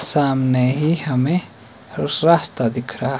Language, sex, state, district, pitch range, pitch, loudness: Hindi, male, Himachal Pradesh, Shimla, 125-150 Hz, 130 Hz, -19 LUFS